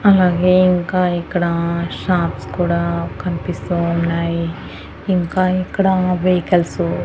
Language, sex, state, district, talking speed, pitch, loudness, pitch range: Telugu, female, Andhra Pradesh, Annamaya, 95 wpm, 175 Hz, -17 LUFS, 170-185 Hz